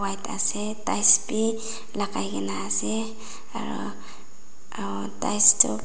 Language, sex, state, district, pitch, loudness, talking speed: Nagamese, female, Nagaland, Dimapur, 210 Hz, -23 LUFS, 125 wpm